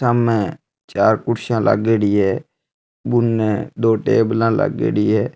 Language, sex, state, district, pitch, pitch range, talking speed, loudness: Marwari, male, Rajasthan, Churu, 115 Hz, 105-115 Hz, 110 wpm, -18 LUFS